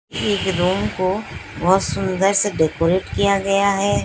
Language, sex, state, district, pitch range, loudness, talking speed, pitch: Hindi, female, Odisha, Sambalpur, 185-200 Hz, -19 LUFS, 150 wpm, 190 Hz